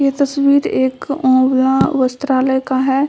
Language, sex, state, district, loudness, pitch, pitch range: Hindi, female, Bihar, Samastipur, -15 LUFS, 265 Hz, 260-280 Hz